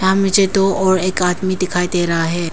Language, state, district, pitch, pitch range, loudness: Hindi, Arunachal Pradesh, Papum Pare, 185 Hz, 180-190 Hz, -16 LUFS